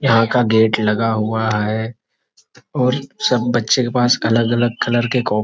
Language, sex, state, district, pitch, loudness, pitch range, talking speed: Hindi, male, Jharkhand, Sahebganj, 115 Hz, -17 LUFS, 110-125 Hz, 165 wpm